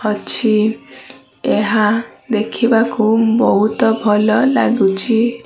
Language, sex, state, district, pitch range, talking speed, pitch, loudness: Odia, female, Odisha, Malkangiri, 215-230 Hz, 65 wpm, 225 Hz, -15 LUFS